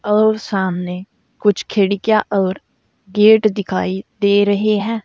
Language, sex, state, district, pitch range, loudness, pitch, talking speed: Hindi, female, Uttar Pradesh, Saharanpur, 190-215 Hz, -16 LUFS, 205 Hz, 120 wpm